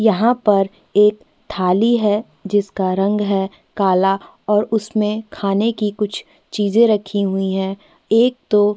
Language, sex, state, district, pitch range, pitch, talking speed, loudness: Hindi, female, Chhattisgarh, Korba, 195-220 Hz, 210 Hz, 145 wpm, -18 LUFS